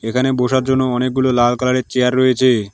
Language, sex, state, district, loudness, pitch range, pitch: Bengali, male, West Bengal, Alipurduar, -16 LUFS, 125-130 Hz, 125 Hz